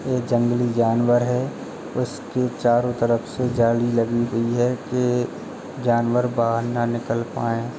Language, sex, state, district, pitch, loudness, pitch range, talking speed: Hindi, male, Uttar Pradesh, Jalaun, 120 Hz, -22 LUFS, 115-125 Hz, 140 wpm